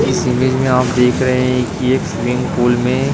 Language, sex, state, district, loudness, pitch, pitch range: Hindi, male, Uttar Pradesh, Hamirpur, -15 LUFS, 125 Hz, 125-130 Hz